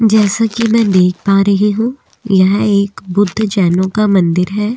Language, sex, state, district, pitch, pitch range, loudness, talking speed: Hindi, female, Delhi, New Delhi, 205 Hz, 190-215 Hz, -13 LUFS, 175 wpm